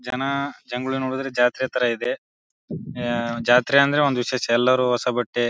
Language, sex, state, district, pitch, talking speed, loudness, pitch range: Kannada, male, Karnataka, Bijapur, 125 Hz, 165 wpm, -21 LUFS, 120-135 Hz